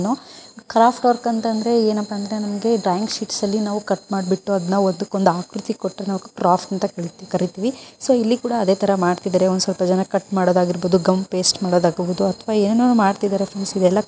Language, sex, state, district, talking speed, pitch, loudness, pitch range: Kannada, female, Karnataka, Gulbarga, 190 wpm, 200 Hz, -19 LUFS, 185-220 Hz